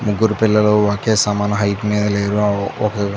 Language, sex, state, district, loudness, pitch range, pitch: Telugu, male, Andhra Pradesh, Chittoor, -17 LUFS, 100-105 Hz, 105 Hz